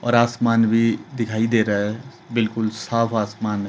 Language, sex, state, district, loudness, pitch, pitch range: Hindi, male, Himachal Pradesh, Shimla, -21 LUFS, 115 Hz, 110-115 Hz